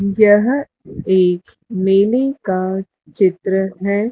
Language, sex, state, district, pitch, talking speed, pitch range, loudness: Hindi, male, Madhya Pradesh, Dhar, 195 Hz, 85 wpm, 185-210 Hz, -16 LUFS